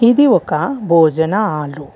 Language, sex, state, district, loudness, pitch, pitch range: Telugu, female, Telangana, Hyderabad, -14 LUFS, 170 Hz, 155-235 Hz